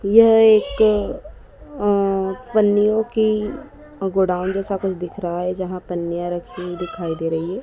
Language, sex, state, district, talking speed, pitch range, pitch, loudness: Hindi, female, Madhya Pradesh, Dhar, 140 wpm, 180-215 Hz, 195 Hz, -20 LUFS